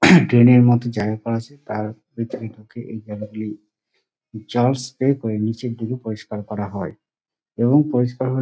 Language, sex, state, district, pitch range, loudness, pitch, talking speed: Bengali, male, West Bengal, Dakshin Dinajpur, 110-125 Hz, -20 LUFS, 115 Hz, 170 wpm